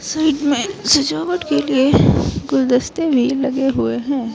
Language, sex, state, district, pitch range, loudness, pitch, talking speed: Hindi, female, Himachal Pradesh, Shimla, 260-300 Hz, -17 LUFS, 275 Hz, 140 wpm